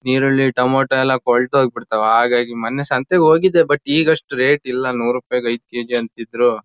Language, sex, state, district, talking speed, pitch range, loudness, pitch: Kannada, male, Karnataka, Shimoga, 180 wpm, 120-135 Hz, -16 LUFS, 125 Hz